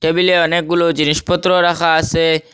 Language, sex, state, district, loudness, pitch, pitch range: Bengali, male, Assam, Hailakandi, -14 LUFS, 170 Hz, 160-175 Hz